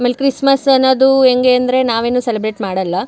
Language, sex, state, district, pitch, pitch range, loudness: Kannada, female, Karnataka, Chamarajanagar, 250 Hz, 230-265 Hz, -13 LUFS